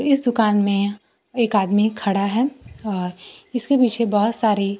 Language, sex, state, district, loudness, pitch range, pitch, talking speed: Hindi, female, Bihar, Kaimur, -19 LUFS, 200-245 Hz, 215 Hz, 150 wpm